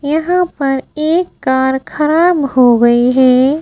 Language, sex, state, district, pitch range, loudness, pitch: Hindi, female, Madhya Pradesh, Bhopal, 260-320 Hz, -12 LUFS, 275 Hz